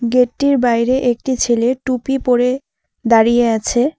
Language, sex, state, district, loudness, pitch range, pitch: Bengali, female, West Bengal, Alipurduar, -15 LUFS, 235-260 Hz, 245 Hz